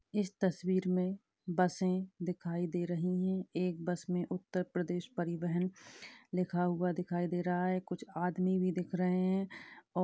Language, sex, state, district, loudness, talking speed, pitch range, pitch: Hindi, female, Uttar Pradesh, Hamirpur, -35 LUFS, 160 wpm, 175-185 Hz, 180 Hz